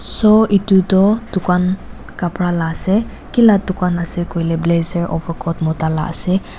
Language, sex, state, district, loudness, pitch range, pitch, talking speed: Nagamese, female, Nagaland, Dimapur, -16 LUFS, 165-195 Hz, 180 Hz, 145 wpm